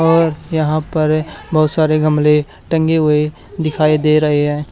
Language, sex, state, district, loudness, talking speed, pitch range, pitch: Hindi, male, Haryana, Charkhi Dadri, -15 LUFS, 150 wpm, 150-160 Hz, 155 Hz